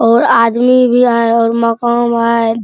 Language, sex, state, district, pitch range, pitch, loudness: Maithili, male, Bihar, Araria, 230-240 Hz, 230 Hz, -11 LUFS